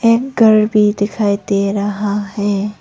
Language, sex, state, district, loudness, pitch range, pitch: Hindi, female, Arunachal Pradesh, Papum Pare, -15 LUFS, 205-215 Hz, 205 Hz